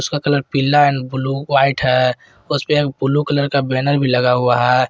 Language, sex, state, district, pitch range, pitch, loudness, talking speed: Hindi, male, Jharkhand, Garhwa, 130-145 Hz, 135 Hz, -16 LUFS, 185 wpm